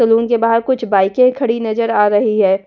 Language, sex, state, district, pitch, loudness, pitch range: Hindi, female, Delhi, New Delhi, 230 Hz, -14 LUFS, 210-235 Hz